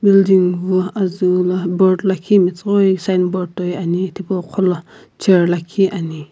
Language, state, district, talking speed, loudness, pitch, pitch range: Sumi, Nagaland, Kohima, 140 wpm, -16 LUFS, 185 Hz, 180-190 Hz